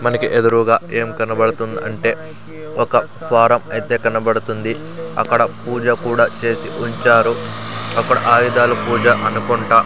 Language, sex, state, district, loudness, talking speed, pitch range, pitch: Telugu, male, Andhra Pradesh, Sri Satya Sai, -16 LUFS, 110 wpm, 115-120 Hz, 115 Hz